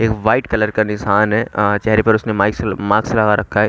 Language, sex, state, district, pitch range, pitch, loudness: Hindi, male, Haryana, Rohtak, 105-110 Hz, 110 Hz, -16 LUFS